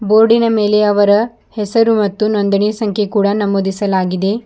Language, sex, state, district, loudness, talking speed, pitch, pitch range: Kannada, female, Karnataka, Bidar, -14 LUFS, 120 wpm, 210 Hz, 200-215 Hz